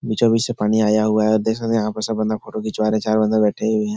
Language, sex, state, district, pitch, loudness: Hindi, male, Bihar, Supaul, 110 Hz, -19 LUFS